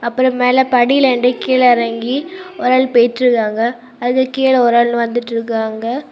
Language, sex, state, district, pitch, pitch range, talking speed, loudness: Tamil, female, Tamil Nadu, Kanyakumari, 245 Hz, 235-260 Hz, 145 wpm, -14 LUFS